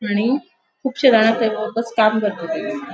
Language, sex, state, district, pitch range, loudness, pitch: Konkani, female, Goa, North and South Goa, 215-245 Hz, -18 LUFS, 225 Hz